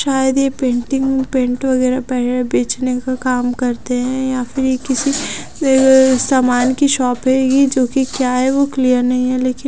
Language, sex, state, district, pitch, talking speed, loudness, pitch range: Hindi, female, Odisha, Nuapada, 260 Hz, 185 wpm, -15 LUFS, 250-265 Hz